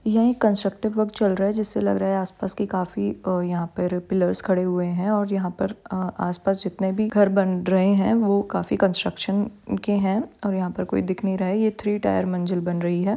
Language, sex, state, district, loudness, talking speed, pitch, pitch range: Hindi, female, Uttar Pradesh, Jyotiba Phule Nagar, -23 LUFS, 235 wpm, 195 Hz, 180-205 Hz